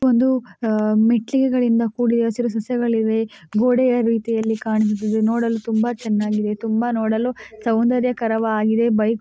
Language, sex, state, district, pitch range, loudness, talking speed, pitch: Kannada, male, Karnataka, Chamarajanagar, 220-240 Hz, -20 LUFS, 125 wpm, 225 Hz